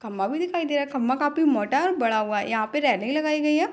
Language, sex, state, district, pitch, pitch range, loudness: Hindi, female, Bihar, Darbhanga, 285 Hz, 220-305 Hz, -24 LUFS